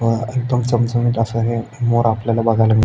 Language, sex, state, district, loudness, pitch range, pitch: Marathi, male, Maharashtra, Aurangabad, -18 LUFS, 115-120 Hz, 115 Hz